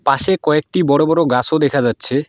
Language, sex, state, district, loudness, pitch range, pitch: Bengali, female, West Bengal, Alipurduar, -15 LUFS, 140-160 Hz, 150 Hz